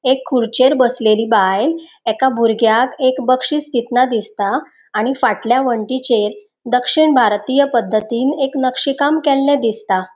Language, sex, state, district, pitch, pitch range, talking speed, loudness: Konkani, female, Goa, North and South Goa, 250 Hz, 225-270 Hz, 125 wpm, -15 LUFS